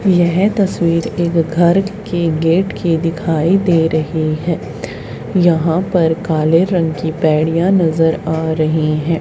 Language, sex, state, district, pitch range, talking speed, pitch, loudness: Hindi, female, Haryana, Charkhi Dadri, 160-175 Hz, 135 wpm, 165 Hz, -15 LUFS